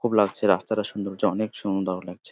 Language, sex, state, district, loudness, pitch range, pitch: Bengali, male, West Bengal, Jalpaiguri, -25 LUFS, 95-105 Hz, 100 Hz